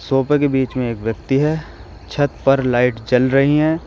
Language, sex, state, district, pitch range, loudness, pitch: Hindi, male, Uttar Pradesh, Shamli, 120-145 Hz, -17 LUFS, 135 Hz